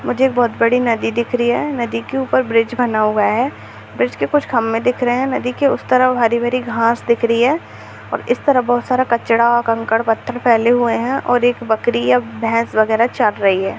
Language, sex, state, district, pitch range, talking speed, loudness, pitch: Hindi, female, Bihar, Bhagalpur, 225-250 Hz, 215 wpm, -16 LUFS, 235 Hz